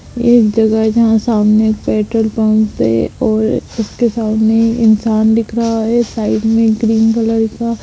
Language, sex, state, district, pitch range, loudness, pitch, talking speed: Hindi, female, Bihar, Darbhanga, 220-230 Hz, -13 LUFS, 220 Hz, 170 wpm